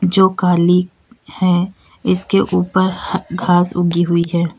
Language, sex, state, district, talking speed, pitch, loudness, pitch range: Hindi, female, Uttar Pradesh, Lalitpur, 130 wpm, 180 Hz, -16 LUFS, 175-185 Hz